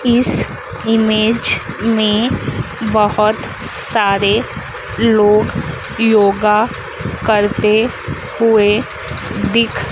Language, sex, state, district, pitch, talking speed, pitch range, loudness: Hindi, female, Madhya Pradesh, Dhar, 215 Hz, 60 wpm, 210-225 Hz, -15 LUFS